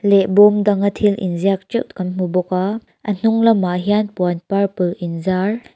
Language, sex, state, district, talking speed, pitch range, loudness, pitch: Mizo, female, Mizoram, Aizawl, 200 wpm, 185-205 Hz, -17 LUFS, 200 Hz